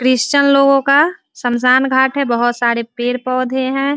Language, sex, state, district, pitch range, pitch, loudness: Hindi, female, Bihar, Muzaffarpur, 245-275 Hz, 255 Hz, -14 LUFS